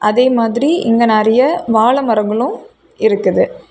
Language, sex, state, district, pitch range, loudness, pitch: Tamil, female, Tamil Nadu, Kanyakumari, 225-315 Hz, -13 LUFS, 240 Hz